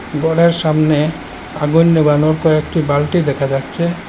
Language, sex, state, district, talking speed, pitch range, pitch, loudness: Bengali, male, Assam, Hailakandi, 115 wpm, 150-165 Hz, 155 Hz, -14 LUFS